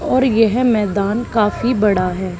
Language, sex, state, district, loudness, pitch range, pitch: Hindi, female, Haryana, Charkhi Dadri, -16 LUFS, 200-240 Hz, 215 Hz